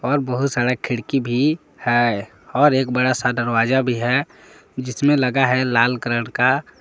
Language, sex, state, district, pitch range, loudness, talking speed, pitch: Hindi, male, Jharkhand, Palamu, 120-135 Hz, -19 LUFS, 165 wpm, 125 Hz